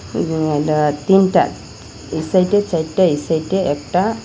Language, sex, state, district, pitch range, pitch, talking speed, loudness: Bengali, female, Assam, Hailakandi, 155-190 Hz, 165 Hz, 140 wpm, -17 LUFS